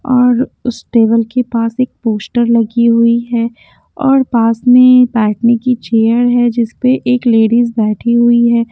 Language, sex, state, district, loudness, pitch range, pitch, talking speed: Hindi, female, Haryana, Jhajjar, -12 LUFS, 230-250 Hz, 235 Hz, 165 wpm